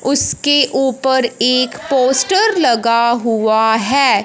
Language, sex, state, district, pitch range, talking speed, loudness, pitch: Hindi, female, Punjab, Fazilka, 235-275 Hz, 100 wpm, -14 LUFS, 260 Hz